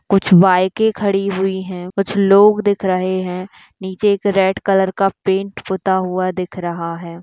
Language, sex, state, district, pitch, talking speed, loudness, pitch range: Hindi, female, Bihar, Bhagalpur, 190 Hz, 175 wpm, -16 LUFS, 185-195 Hz